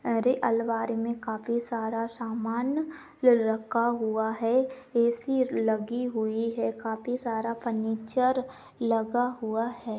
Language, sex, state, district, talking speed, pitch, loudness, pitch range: Hindi, female, Uttar Pradesh, Etah, 115 wpm, 230 Hz, -28 LUFS, 225-245 Hz